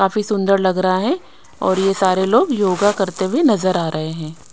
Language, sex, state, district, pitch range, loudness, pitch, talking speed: Hindi, female, Odisha, Sambalpur, 185-205 Hz, -17 LUFS, 190 Hz, 210 wpm